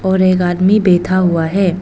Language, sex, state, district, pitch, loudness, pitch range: Hindi, female, Arunachal Pradesh, Papum Pare, 185 Hz, -13 LUFS, 175-190 Hz